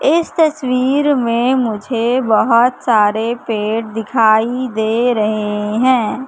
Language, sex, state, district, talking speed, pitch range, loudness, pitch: Hindi, female, Madhya Pradesh, Katni, 105 wpm, 220-255 Hz, -15 LUFS, 235 Hz